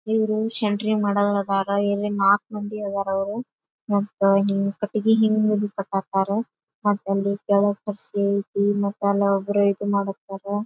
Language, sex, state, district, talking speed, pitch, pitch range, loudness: Kannada, female, Karnataka, Bijapur, 135 wpm, 200 Hz, 200-210 Hz, -23 LUFS